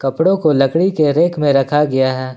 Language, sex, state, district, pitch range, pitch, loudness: Hindi, male, Jharkhand, Ranchi, 135-160 Hz, 145 Hz, -14 LUFS